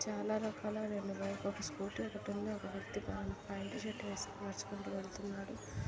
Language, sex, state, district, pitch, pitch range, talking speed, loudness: Telugu, female, Andhra Pradesh, Guntur, 200 Hz, 195-215 Hz, 145 wpm, -42 LUFS